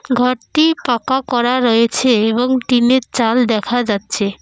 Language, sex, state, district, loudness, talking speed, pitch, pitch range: Bengali, female, West Bengal, Cooch Behar, -15 LUFS, 135 wpm, 245 Hz, 230-255 Hz